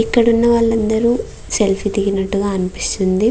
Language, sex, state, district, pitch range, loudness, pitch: Telugu, female, Andhra Pradesh, Guntur, 195-230 Hz, -16 LUFS, 210 Hz